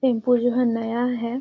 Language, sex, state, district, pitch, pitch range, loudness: Magahi, female, Bihar, Gaya, 245 Hz, 235-250 Hz, -22 LUFS